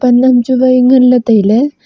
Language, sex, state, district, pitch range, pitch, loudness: Wancho, female, Arunachal Pradesh, Longding, 245-255 Hz, 250 Hz, -9 LUFS